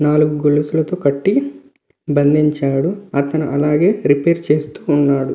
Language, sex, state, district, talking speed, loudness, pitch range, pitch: Telugu, male, Andhra Pradesh, Visakhapatnam, 90 wpm, -16 LUFS, 140-155 Hz, 150 Hz